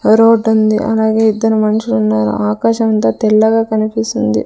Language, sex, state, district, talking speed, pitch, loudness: Telugu, female, Andhra Pradesh, Sri Satya Sai, 120 wpm, 220 Hz, -13 LUFS